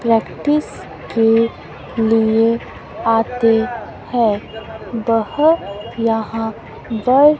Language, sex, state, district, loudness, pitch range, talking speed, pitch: Hindi, female, Himachal Pradesh, Shimla, -17 LUFS, 225-235 Hz, 75 wpm, 225 Hz